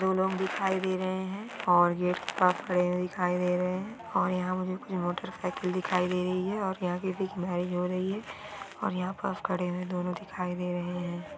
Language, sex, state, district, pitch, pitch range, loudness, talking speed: Hindi, female, Bihar, Jahanabad, 180 Hz, 180-190 Hz, -30 LUFS, 200 wpm